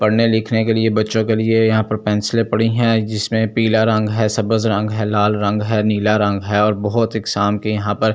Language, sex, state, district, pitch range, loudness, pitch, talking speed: Hindi, male, Delhi, New Delhi, 105-110 Hz, -17 LUFS, 110 Hz, 220 wpm